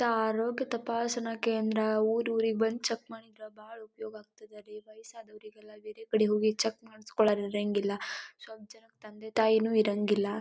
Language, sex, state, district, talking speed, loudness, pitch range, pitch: Kannada, female, Karnataka, Dharwad, 125 wpm, -30 LUFS, 215-225 Hz, 220 Hz